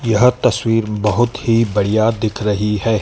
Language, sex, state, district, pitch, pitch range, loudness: Hindi, male, Madhya Pradesh, Dhar, 110 Hz, 105-115 Hz, -16 LUFS